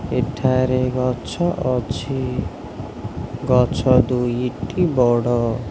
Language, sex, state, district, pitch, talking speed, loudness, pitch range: Odia, male, Odisha, Khordha, 125 Hz, 65 wpm, -20 LUFS, 125-130 Hz